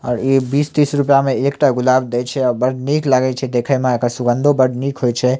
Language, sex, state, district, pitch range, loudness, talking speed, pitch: Maithili, male, Bihar, Samastipur, 125-140 Hz, -16 LUFS, 255 wpm, 130 Hz